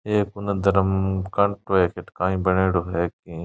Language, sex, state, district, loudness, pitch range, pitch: Rajasthani, male, Rajasthan, Churu, -23 LUFS, 90-100 Hz, 95 Hz